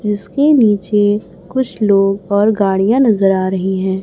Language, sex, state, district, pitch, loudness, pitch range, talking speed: Hindi, female, Chhattisgarh, Raipur, 205 Hz, -14 LUFS, 195-215 Hz, 150 wpm